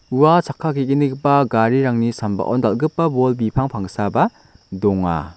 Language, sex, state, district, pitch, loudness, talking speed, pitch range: Garo, male, Meghalaya, South Garo Hills, 125 Hz, -18 LUFS, 100 wpm, 105-140 Hz